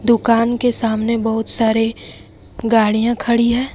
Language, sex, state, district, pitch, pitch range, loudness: Hindi, female, Jharkhand, Deoghar, 230 Hz, 225-235 Hz, -16 LUFS